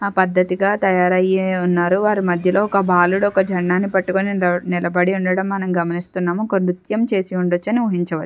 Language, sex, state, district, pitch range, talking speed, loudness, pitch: Telugu, female, Andhra Pradesh, Chittoor, 180-195 Hz, 155 wpm, -18 LUFS, 185 Hz